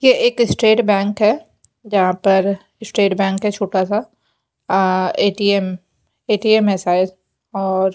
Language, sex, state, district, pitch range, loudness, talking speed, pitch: Hindi, female, Haryana, Jhajjar, 190-215 Hz, -17 LUFS, 130 wpm, 200 Hz